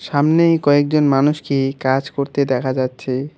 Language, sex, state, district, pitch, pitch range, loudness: Bengali, male, West Bengal, Alipurduar, 140 Hz, 130-150 Hz, -17 LUFS